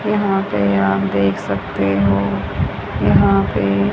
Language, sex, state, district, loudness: Hindi, female, Haryana, Charkhi Dadri, -17 LUFS